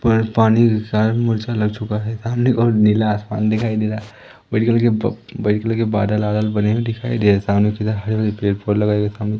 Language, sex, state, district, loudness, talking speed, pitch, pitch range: Hindi, male, Madhya Pradesh, Umaria, -18 LUFS, 215 wpm, 110 Hz, 105-115 Hz